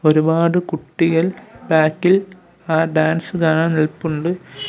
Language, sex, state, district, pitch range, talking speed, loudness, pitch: Malayalam, male, Kerala, Kollam, 155-175 Hz, 100 wpm, -18 LUFS, 165 Hz